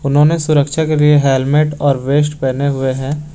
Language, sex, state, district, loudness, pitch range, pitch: Hindi, male, Jharkhand, Garhwa, -14 LUFS, 135-150 Hz, 145 Hz